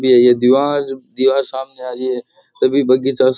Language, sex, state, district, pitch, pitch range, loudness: Rajasthani, male, Rajasthan, Churu, 130 Hz, 130-135 Hz, -15 LUFS